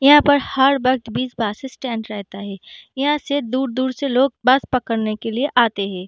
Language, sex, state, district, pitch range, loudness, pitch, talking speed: Hindi, female, Bihar, Darbhanga, 225-270 Hz, -19 LUFS, 255 Hz, 195 wpm